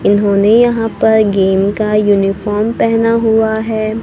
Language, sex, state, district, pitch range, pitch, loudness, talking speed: Hindi, female, Maharashtra, Gondia, 205-225 Hz, 215 Hz, -12 LUFS, 135 wpm